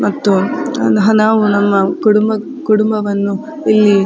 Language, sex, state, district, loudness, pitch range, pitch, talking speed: Kannada, female, Karnataka, Dakshina Kannada, -13 LUFS, 200-215 Hz, 210 Hz, 90 wpm